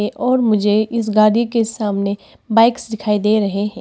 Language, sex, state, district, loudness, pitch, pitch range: Hindi, female, Arunachal Pradesh, Papum Pare, -16 LUFS, 215 Hz, 210-230 Hz